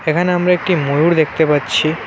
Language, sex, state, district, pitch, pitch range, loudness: Bengali, male, Tripura, West Tripura, 160 Hz, 155-175 Hz, -15 LUFS